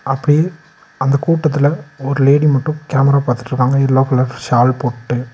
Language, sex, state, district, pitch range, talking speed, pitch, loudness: Tamil, male, Tamil Nadu, Nilgiris, 125-145 Hz, 135 wpm, 135 Hz, -15 LUFS